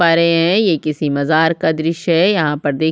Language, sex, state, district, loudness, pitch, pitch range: Hindi, female, Chhattisgarh, Sukma, -15 LUFS, 160 Hz, 155-170 Hz